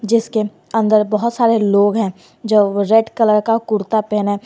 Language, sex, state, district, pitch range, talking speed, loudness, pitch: Hindi, female, Jharkhand, Garhwa, 210-225 Hz, 160 wpm, -16 LUFS, 215 Hz